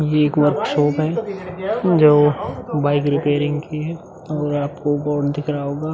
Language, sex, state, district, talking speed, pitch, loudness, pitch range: Hindi, male, Bihar, Vaishali, 160 wpm, 150 Hz, -19 LUFS, 145-155 Hz